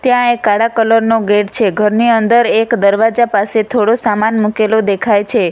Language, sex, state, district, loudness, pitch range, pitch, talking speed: Gujarati, female, Gujarat, Valsad, -12 LUFS, 210-230 Hz, 220 Hz, 185 wpm